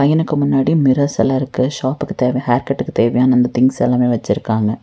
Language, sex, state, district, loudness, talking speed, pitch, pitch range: Tamil, female, Tamil Nadu, Nilgiris, -16 LUFS, 150 wpm, 130 Hz, 120-140 Hz